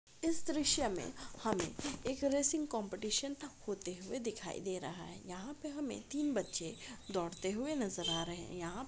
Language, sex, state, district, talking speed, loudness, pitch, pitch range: Hindi, female, Chhattisgarh, Raigarh, 175 wpm, -39 LUFS, 225 Hz, 185-285 Hz